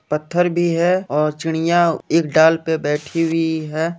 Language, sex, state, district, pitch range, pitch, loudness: Hindi, male, Jharkhand, Jamtara, 155-170 Hz, 165 Hz, -18 LUFS